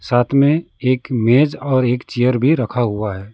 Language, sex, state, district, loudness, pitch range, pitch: Hindi, male, West Bengal, Alipurduar, -17 LUFS, 120-140 Hz, 125 Hz